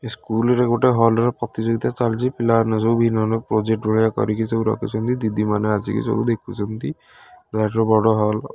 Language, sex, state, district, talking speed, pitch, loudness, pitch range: Odia, male, Odisha, Khordha, 180 wpm, 110 Hz, -20 LUFS, 110-115 Hz